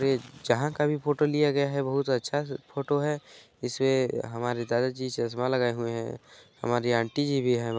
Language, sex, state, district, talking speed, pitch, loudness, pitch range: Hindi, male, Chhattisgarh, Bilaspur, 200 wpm, 130 Hz, -28 LUFS, 120-145 Hz